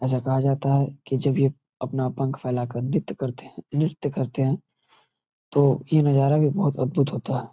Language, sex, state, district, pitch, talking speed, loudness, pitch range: Hindi, male, Uttar Pradesh, Varanasi, 135 Hz, 165 wpm, -24 LUFS, 130-140 Hz